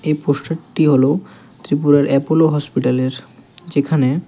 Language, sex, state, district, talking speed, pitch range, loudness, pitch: Bengali, male, Tripura, West Tripura, 100 wpm, 135-160 Hz, -17 LUFS, 145 Hz